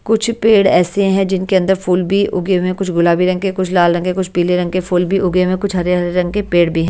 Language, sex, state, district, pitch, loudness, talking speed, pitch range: Hindi, male, Delhi, New Delhi, 185 Hz, -15 LUFS, 295 wpm, 180-195 Hz